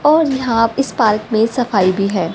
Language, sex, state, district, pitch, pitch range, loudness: Hindi, female, Haryana, Rohtak, 230 Hz, 200-260 Hz, -15 LUFS